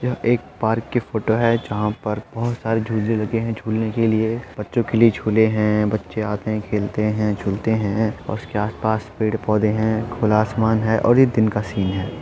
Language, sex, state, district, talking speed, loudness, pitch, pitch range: Hindi, male, Uttar Pradesh, Etah, 210 wpm, -20 LUFS, 110 Hz, 105-115 Hz